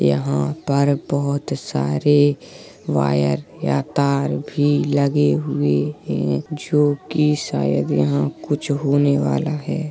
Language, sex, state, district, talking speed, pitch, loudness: Hindi, female, Uttar Pradesh, Jalaun, 110 wpm, 75 Hz, -20 LUFS